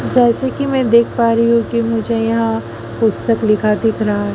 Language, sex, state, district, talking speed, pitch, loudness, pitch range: Hindi, female, Madhya Pradesh, Dhar, 195 wpm, 230 Hz, -15 LUFS, 220-235 Hz